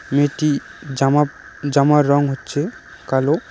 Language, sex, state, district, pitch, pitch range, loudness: Bengali, male, West Bengal, Cooch Behar, 145 Hz, 140-150 Hz, -18 LUFS